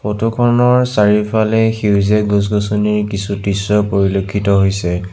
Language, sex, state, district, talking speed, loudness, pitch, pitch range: Assamese, male, Assam, Sonitpur, 105 wpm, -14 LUFS, 105 Hz, 100-110 Hz